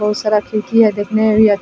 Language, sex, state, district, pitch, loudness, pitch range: Hindi, female, Bihar, Vaishali, 215 Hz, -14 LUFS, 210-215 Hz